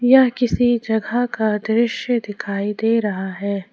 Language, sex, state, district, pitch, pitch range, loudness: Hindi, female, Jharkhand, Ranchi, 220 Hz, 205-240 Hz, -19 LUFS